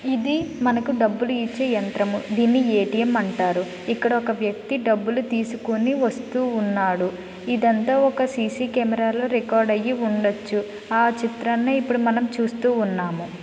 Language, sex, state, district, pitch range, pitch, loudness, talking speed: Telugu, female, Andhra Pradesh, Srikakulam, 210-245 Hz, 230 Hz, -22 LUFS, 130 wpm